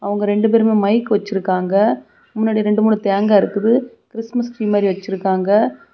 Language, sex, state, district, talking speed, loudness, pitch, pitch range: Tamil, female, Tamil Nadu, Kanyakumari, 140 wpm, -17 LUFS, 210 Hz, 200-225 Hz